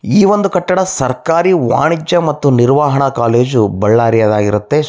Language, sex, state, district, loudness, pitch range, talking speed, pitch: Kannada, male, Karnataka, Bellary, -12 LUFS, 115-170 Hz, 135 wpm, 140 Hz